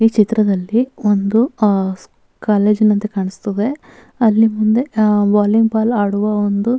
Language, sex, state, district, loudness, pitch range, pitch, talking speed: Kannada, female, Karnataka, Bellary, -15 LUFS, 205-225 Hz, 210 Hz, 115 wpm